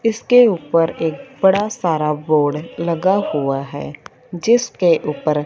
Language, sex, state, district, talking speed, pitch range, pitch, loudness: Hindi, female, Punjab, Fazilka, 120 wpm, 150-200 Hz, 165 Hz, -17 LUFS